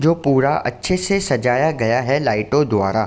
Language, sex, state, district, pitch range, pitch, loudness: Hindi, male, Uttar Pradesh, Ghazipur, 115-160 Hz, 140 Hz, -18 LUFS